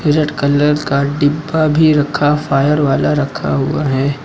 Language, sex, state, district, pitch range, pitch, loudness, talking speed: Hindi, male, Uttar Pradesh, Lucknow, 140-150 Hz, 145 Hz, -14 LUFS, 155 wpm